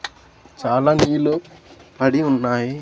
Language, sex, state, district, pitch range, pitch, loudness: Telugu, male, Andhra Pradesh, Sri Satya Sai, 125-150 Hz, 135 Hz, -19 LUFS